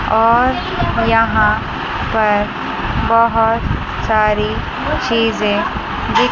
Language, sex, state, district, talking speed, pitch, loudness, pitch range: Hindi, female, Chandigarh, Chandigarh, 65 wpm, 225 Hz, -15 LUFS, 215-230 Hz